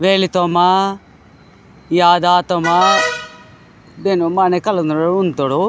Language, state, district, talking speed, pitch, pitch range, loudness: Gondi, Chhattisgarh, Sukma, 95 wpm, 180 Hz, 170-190 Hz, -15 LUFS